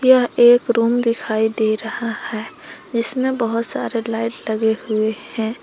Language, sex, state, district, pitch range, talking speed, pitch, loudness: Hindi, female, Jharkhand, Palamu, 220-240 Hz, 150 wpm, 230 Hz, -18 LUFS